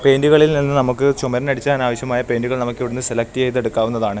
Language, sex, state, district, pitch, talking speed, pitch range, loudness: Malayalam, male, Kerala, Kasaragod, 125 Hz, 170 wpm, 120-140 Hz, -18 LUFS